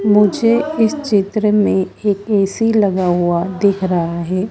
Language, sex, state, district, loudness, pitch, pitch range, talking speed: Hindi, female, Madhya Pradesh, Dhar, -16 LUFS, 200 Hz, 180-215 Hz, 145 wpm